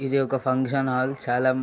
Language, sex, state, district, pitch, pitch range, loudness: Telugu, male, Andhra Pradesh, Srikakulam, 130 Hz, 130-135 Hz, -24 LUFS